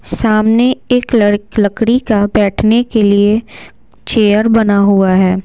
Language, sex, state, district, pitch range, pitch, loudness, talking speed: Hindi, female, Bihar, Patna, 205-230 Hz, 215 Hz, -12 LUFS, 130 wpm